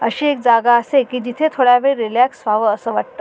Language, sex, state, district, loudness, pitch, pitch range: Marathi, female, Maharashtra, Sindhudurg, -16 LUFS, 245 Hz, 230-275 Hz